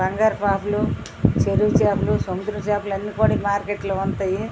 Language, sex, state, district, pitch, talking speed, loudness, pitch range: Telugu, female, Andhra Pradesh, Srikakulam, 205 Hz, 160 wpm, -21 LUFS, 195-210 Hz